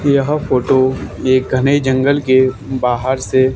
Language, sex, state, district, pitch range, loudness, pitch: Hindi, male, Haryana, Charkhi Dadri, 130-140 Hz, -15 LUFS, 130 Hz